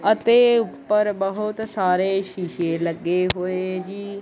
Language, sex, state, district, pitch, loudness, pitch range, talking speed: Punjabi, male, Punjab, Kapurthala, 195 Hz, -21 LUFS, 180-210 Hz, 115 wpm